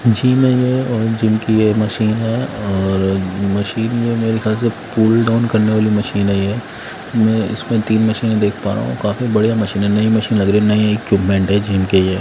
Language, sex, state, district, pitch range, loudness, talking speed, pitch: Hindi, male, Bihar, West Champaran, 100-115 Hz, -16 LUFS, 215 wpm, 110 Hz